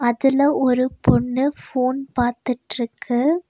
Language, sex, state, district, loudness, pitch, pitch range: Tamil, female, Tamil Nadu, Nilgiris, -20 LUFS, 255 Hz, 245-275 Hz